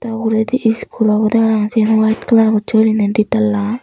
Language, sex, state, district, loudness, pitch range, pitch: Chakma, female, Tripura, Unakoti, -14 LUFS, 215-225 Hz, 220 Hz